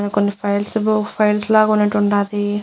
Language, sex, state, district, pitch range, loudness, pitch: Telugu, female, Andhra Pradesh, Annamaya, 205-215 Hz, -17 LUFS, 205 Hz